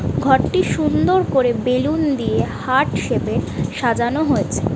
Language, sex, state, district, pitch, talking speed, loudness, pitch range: Bengali, female, West Bengal, Jhargram, 260 Hz, 115 wpm, -18 LUFS, 250-305 Hz